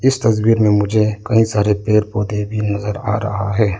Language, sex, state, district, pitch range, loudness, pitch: Hindi, male, Arunachal Pradesh, Lower Dibang Valley, 105-110 Hz, -17 LUFS, 105 Hz